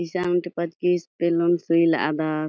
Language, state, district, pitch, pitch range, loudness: Kurukh, Chhattisgarh, Jashpur, 170 Hz, 165-175 Hz, -22 LUFS